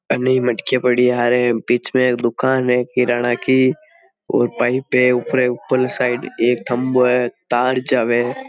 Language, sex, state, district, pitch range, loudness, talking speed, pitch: Marwari, male, Rajasthan, Nagaur, 120-130 Hz, -17 LUFS, 155 wpm, 125 Hz